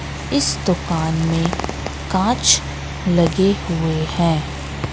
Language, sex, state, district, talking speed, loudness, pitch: Hindi, female, Madhya Pradesh, Katni, 85 wpm, -19 LUFS, 160 Hz